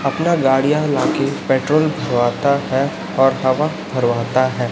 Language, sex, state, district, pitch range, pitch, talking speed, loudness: Hindi, male, Chhattisgarh, Raipur, 130-150 Hz, 135 Hz, 125 wpm, -17 LUFS